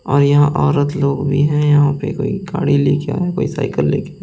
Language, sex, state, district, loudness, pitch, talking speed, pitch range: Hindi, male, Delhi, New Delhi, -16 LUFS, 145 Hz, 240 wpm, 140-150 Hz